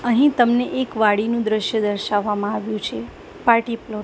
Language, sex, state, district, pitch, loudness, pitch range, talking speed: Gujarati, female, Gujarat, Gandhinagar, 220 Hz, -20 LUFS, 210-235 Hz, 165 wpm